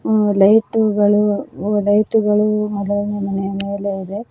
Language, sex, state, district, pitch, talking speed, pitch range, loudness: Kannada, female, Karnataka, Koppal, 205 Hz, 85 wpm, 200-210 Hz, -17 LUFS